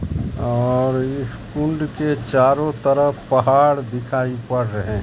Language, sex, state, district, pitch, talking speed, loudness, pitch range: Hindi, male, Bihar, Katihar, 130 Hz, 105 wpm, -19 LUFS, 120-140 Hz